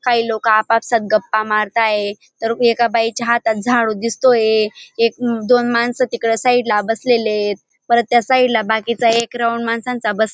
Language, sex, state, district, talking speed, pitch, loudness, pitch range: Marathi, female, Maharashtra, Dhule, 170 wpm, 230 Hz, -16 LUFS, 220-240 Hz